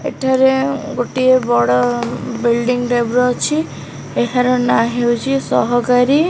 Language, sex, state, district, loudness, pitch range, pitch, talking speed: Odia, female, Odisha, Khordha, -15 LUFS, 240-265 Hz, 250 Hz, 115 wpm